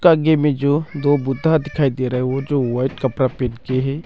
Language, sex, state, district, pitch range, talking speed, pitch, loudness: Hindi, male, Arunachal Pradesh, Longding, 130-150 Hz, 235 wpm, 135 Hz, -19 LUFS